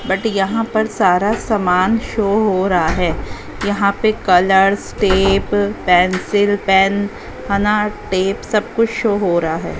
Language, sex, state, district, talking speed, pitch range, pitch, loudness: Hindi, female, Haryana, Jhajjar, 130 wpm, 190-210 Hz, 200 Hz, -16 LUFS